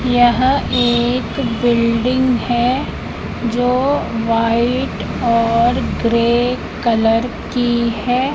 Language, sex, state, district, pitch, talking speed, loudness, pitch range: Hindi, female, Madhya Pradesh, Katni, 240 Hz, 80 wpm, -16 LUFS, 230-250 Hz